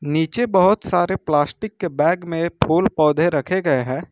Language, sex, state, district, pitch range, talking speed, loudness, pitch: Hindi, male, Jharkhand, Ranchi, 155-185 Hz, 175 wpm, -19 LUFS, 170 Hz